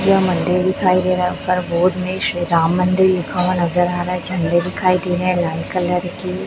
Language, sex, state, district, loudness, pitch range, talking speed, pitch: Hindi, male, Chhattisgarh, Raipur, -17 LUFS, 175-185 Hz, 240 wpm, 180 Hz